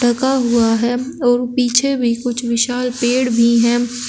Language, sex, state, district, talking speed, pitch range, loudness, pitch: Hindi, female, Uttar Pradesh, Shamli, 160 wpm, 235-250 Hz, -16 LUFS, 245 Hz